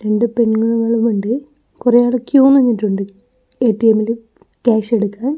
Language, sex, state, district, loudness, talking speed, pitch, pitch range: Malayalam, female, Kerala, Kozhikode, -15 LUFS, 110 wpm, 230 Hz, 220-245 Hz